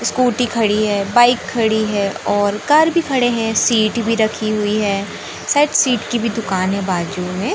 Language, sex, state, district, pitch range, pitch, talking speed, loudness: Hindi, male, Madhya Pradesh, Katni, 205-240 Hz, 220 Hz, 190 wpm, -16 LUFS